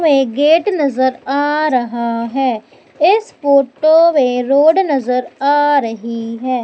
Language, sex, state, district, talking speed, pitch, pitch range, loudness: Hindi, female, Madhya Pradesh, Umaria, 125 wpm, 275 Hz, 250-300 Hz, -14 LUFS